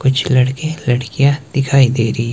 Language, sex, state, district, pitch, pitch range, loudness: Hindi, male, Himachal Pradesh, Shimla, 135 Hz, 125-140 Hz, -15 LUFS